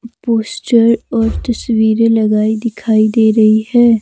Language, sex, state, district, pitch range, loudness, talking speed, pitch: Hindi, female, Himachal Pradesh, Shimla, 220-235 Hz, -13 LUFS, 120 wpm, 225 Hz